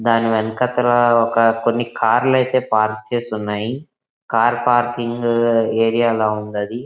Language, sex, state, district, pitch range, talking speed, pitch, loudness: Telugu, male, Andhra Pradesh, Visakhapatnam, 110-120 Hz, 130 wpm, 115 Hz, -17 LUFS